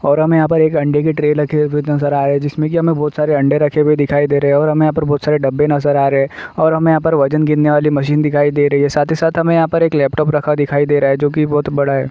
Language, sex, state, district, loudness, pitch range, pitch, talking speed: Hindi, male, Uttar Pradesh, Jalaun, -14 LUFS, 145-155 Hz, 150 Hz, 320 wpm